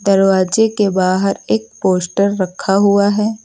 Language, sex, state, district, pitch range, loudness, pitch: Hindi, female, Uttar Pradesh, Lucknow, 190-210 Hz, -15 LUFS, 195 Hz